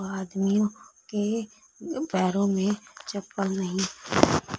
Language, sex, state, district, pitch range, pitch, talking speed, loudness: Hindi, female, Punjab, Fazilka, 190-210 Hz, 200 Hz, 80 wpm, -27 LUFS